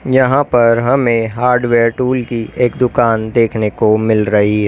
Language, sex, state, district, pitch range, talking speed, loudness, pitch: Hindi, female, Uttar Pradesh, Lalitpur, 110-125 Hz, 165 wpm, -13 LUFS, 115 Hz